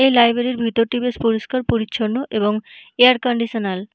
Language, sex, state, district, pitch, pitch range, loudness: Bengali, female, West Bengal, North 24 Parganas, 235 Hz, 220-245 Hz, -18 LUFS